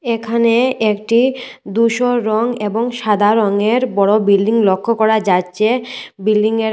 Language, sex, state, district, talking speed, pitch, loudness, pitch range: Bengali, female, Tripura, West Tripura, 125 wpm, 220 Hz, -15 LUFS, 210-235 Hz